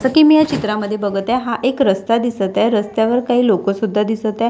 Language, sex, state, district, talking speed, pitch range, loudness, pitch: Marathi, female, Maharashtra, Washim, 240 wpm, 210-245 Hz, -16 LUFS, 220 Hz